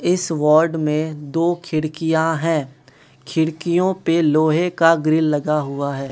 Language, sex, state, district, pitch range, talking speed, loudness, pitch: Hindi, male, Manipur, Imphal West, 150-165 Hz, 135 wpm, -19 LUFS, 155 Hz